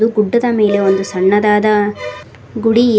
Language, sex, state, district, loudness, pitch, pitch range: Kannada, female, Karnataka, Koppal, -13 LUFS, 210 Hz, 195-225 Hz